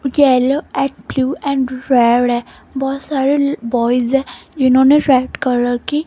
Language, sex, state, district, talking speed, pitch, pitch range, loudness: Hindi, female, Rajasthan, Jaipur, 150 wpm, 265 Hz, 250-280 Hz, -15 LUFS